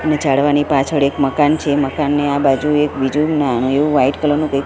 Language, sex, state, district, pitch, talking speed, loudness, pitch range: Gujarati, female, Gujarat, Gandhinagar, 145 Hz, 220 wpm, -15 LUFS, 140-150 Hz